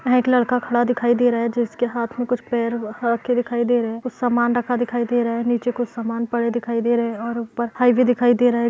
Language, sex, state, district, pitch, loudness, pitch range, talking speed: Hindi, female, Uttar Pradesh, Varanasi, 240 Hz, -20 LUFS, 235-245 Hz, 280 wpm